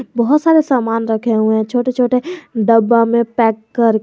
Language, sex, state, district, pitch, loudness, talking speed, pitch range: Hindi, male, Jharkhand, Garhwa, 235 Hz, -14 LUFS, 180 wpm, 225-255 Hz